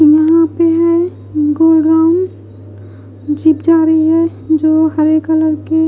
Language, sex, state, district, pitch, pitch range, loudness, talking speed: Hindi, female, Odisha, Khordha, 315 Hz, 310-325 Hz, -12 LUFS, 130 wpm